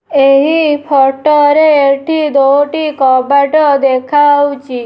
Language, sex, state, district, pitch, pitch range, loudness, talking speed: Odia, female, Odisha, Nuapada, 285 Hz, 275-300 Hz, -10 LUFS, 85 wpm